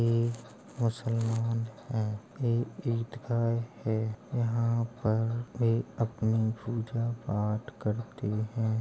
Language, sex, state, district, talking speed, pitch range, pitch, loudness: Hindi, male, Uttar Pradesh, Jalaun, 70 wpm, 110-115 Hz, 115 Hz, -31 LUFS